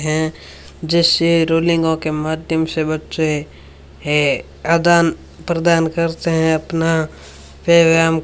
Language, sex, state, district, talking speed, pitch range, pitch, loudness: Hindi, female, Rajasthan, Bikaner, 115 wpm, 155-165 Hz, 160 Hz, -16 LUFS